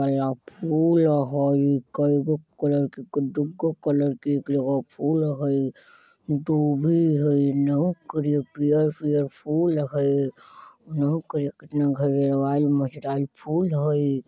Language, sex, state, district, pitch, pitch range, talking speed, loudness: Hindi, male, Bihar, Vaishali, 145 Hz, 140-150 Hz, 90 wpm, -24 LUFS